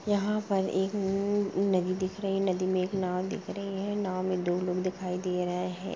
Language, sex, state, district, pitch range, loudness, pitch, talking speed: Hindi, female, Chhattisgarh, Rajnandgaon, 185-200 Hz, -30 LUFS, 190 Hz, 220 wpm